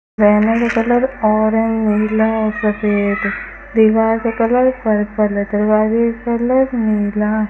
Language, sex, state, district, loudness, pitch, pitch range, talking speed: Hindi, female, Rajasthan, Bikaner, -15 LUFS, 220 Hz, 210-230 Hz, 135 wpm